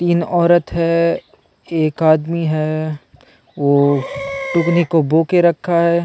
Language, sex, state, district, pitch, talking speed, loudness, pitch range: Hindi, male, Chhattisgarh, Sukma, 170 Hz, 130 wpm, -16 LUFS, 155-170 Hz